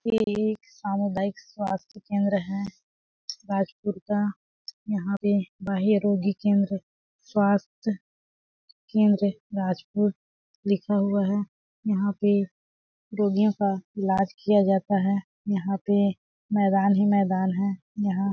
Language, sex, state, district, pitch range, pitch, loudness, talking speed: Hindi, female, Chhattisgarh, Balrampur, 195-205 Hz, 200 Hz, -26 LUFS, 115 wpm